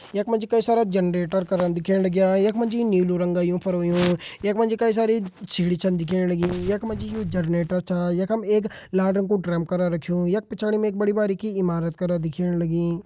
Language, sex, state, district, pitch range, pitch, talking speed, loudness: Hindi, male, Uttarakhand, Tehri Garhwal, 175-210 Hz, 190 Hz, 230 wpm, -23 LUFS